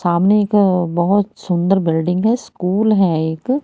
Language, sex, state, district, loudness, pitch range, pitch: Hindi, female, Haryana, Rohtak, -16 LUFS, 175-210 Hz, 190 Hz